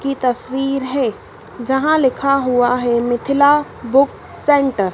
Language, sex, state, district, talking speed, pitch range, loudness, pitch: Hindi, female, Madhya Pradesh, Dhar, 135 wpm, 245-275 Hz, -16 LUFS, 265 Hz